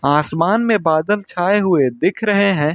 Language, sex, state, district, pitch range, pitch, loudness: Hindi, male, Uttar Pradesh, Lucknow, 155-205 Hz, 185 Hz, -16 LUFS